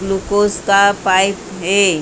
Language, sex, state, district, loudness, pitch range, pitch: Hindi, female, Maharashtra, Mumbai Suburban, -14 LUFS, 190-200 Hz, 195 Hz